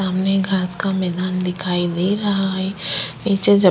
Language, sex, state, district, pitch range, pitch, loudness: Hindi, female, Bihar, Vaishali, 180-195 Hz, 190 Hz, -20 LUFS